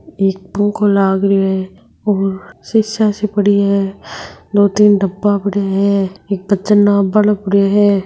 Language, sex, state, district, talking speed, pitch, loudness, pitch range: Marwari, female, Rajasthan, Nagaur, 155 wpm, 200 Hz, -14 LUFS, 195-205 Hz